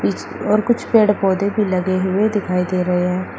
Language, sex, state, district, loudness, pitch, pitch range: Hindi, female, Uttar Pradesh, Shamli, -18 LUFS, 185 Hz, 180-210 Hz